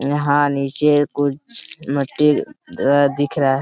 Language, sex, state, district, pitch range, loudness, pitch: Hindi, male, Jharkhand, Sahebganj, 140-145 Hz, -18 LUFS, 145 Hz